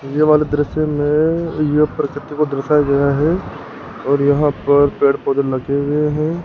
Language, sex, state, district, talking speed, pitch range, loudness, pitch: Hindi, male, Rajasthan, Jaipur, 160 wpm, 140-150 Hz, -16 LUFS, 145 Hz